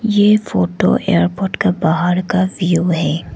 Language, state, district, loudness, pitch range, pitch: Hindi, Arunachal Pradesh, Lower Dibang Valley, -15 LUFS, 160-190 Hz, 180 Hz